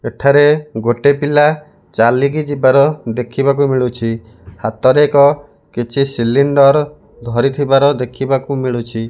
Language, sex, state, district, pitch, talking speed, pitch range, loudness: Odia, male, Odisha, Malkangiri, 135 Hz, 90 wpm, 120-145 Hz, -14 LUFS